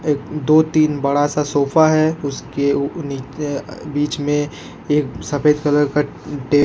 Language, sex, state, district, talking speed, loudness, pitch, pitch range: Hindi, male, Jharkhand, Ranchi, 115 wpm, -18 LUFS, 145 Hz, 140-150 Hz